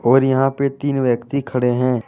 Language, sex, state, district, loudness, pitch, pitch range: Hindi, male, Jharkhand, Deoghar, -18 LUFS, 130 Hz, 125-135 Hz